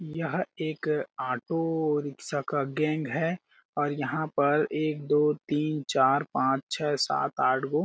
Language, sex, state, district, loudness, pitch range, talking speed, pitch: Hindi, male, Chhattisgarh, Balrampur, -28 LUFS, 145-155 Hz, 130 wpm, 150 Hz